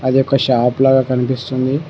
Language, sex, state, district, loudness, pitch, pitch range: Telugu, male, Telangana, Mahabubabad, -15 LUFS, 130 Hz, 130-135 Hz